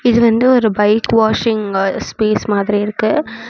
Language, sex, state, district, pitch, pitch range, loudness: Tamil, female, Tamil Nadu, Namakkal, 220 Hz, 210-230 Hz, -14 LUFS